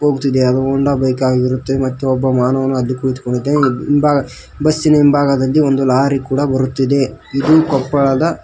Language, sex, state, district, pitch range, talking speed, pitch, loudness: Kannada, male, Karnataka, Koppal, 130-140 Hz, 150 wpm, 135 Hz, -14 LUFS